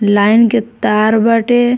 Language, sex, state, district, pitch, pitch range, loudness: Bhojpuri, female, Bihar, Muzaffarpur, 230 Hz, 215-235 Hz, -12 LUFS